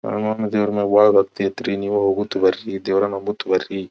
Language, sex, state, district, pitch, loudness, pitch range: Kannada, male, Karnataka, Dharwad, 100 Hz, -19 LUFS, 95-105 Hz